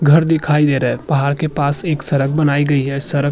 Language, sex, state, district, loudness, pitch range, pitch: Hindi, male, Uttarakhand, Tehri Garhwal, -16 LUFS, 140-155 Hz, 145 Hz